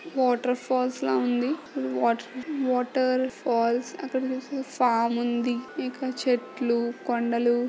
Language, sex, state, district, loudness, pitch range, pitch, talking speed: Telugu, female, Andhra Pradesh, Visakhapatnam, -27 LUFS, 235-260 Hz, 250 Hz, 100 wpm